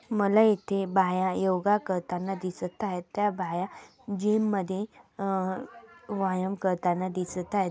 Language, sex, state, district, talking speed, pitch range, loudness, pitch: Marathi, female, Maharashtra, Dhule, 125 wpm, 185-205 Hz, -28 LUFS, 190 Hz